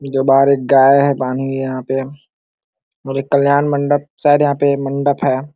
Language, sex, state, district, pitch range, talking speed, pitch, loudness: Hindi, male, Chhattisgarh, Korba, 135-145 Hz, 195 wpm, 140 Hz, -15 LUFS